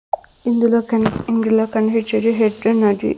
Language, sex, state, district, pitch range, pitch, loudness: Telugu, female, Andhra Pradesh, Sri Satya Sai, 220-230 Hz, 225 Hz, -17 LUFS